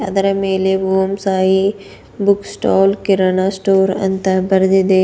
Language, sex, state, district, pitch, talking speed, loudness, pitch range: Kannada, female, Karnataka, Bidar, 190 Hz, 120 wpm, -15 LUFS, 190-195 Hz